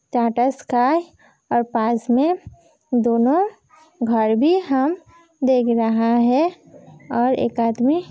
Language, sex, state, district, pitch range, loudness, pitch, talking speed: Hindi, female, Uttar Pradesh, Hamirpur, 235-320 Hz, -19 LUFS, 255 Hz, 120 wpm